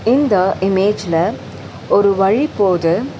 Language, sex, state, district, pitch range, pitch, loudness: Tamil, female, Tamil Nadu, Chennai, 185-210 Hz, 195 Hz, -15 LUFS